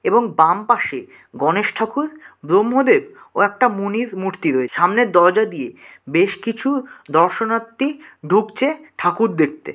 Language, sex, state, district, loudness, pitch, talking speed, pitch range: Bengali, male, West Bengal, Dakshin Dinajpur, -18 LUFS, 225 Hz, 125 wpm, 185-270 Hz